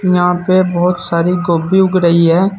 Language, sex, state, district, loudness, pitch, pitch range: Hindi, male, Uttar Pradesh, Saharanpur, -13 LUFS, 180 Hz, 170-185 Hz